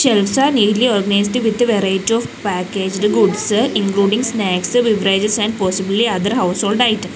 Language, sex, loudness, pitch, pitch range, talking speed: English, female, -16 LUFS, 210 Hz, 195-230 Hz, 145 wpm